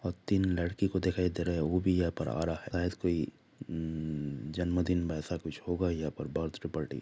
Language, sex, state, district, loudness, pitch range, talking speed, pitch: Hindi, male, Jharkhand, Jamtara, -33 LUFS, 80-90 Hz, 215 wpm, 85 Hz